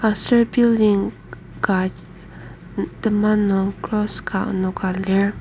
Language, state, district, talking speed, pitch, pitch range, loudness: Ao, Nagaland, Kohima, 100 wpm, 205 Hz, 190-215 Hz, -18 LUFS